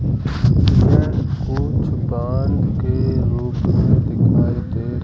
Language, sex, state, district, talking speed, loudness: Hindi, male, Madhya Pradesh, Umaria, 95 wpm, -18 LUFS